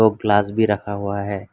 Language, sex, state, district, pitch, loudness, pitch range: Hindi, male, Assam, Kamrup Metropolitan, 105 Hz, -20 LUFS, 100-110 Hz